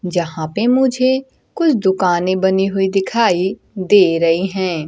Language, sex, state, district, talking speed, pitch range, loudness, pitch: Hindi, female, Bihar, Kaimur, 135 wpm, 180-230 Hz, -16 LUFS, 190 Hz